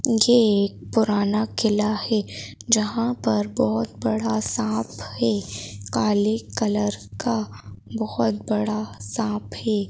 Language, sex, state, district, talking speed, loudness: Hindi, female, Madhya Pradesh, Bhopal, 110 wpm, -23 LUFS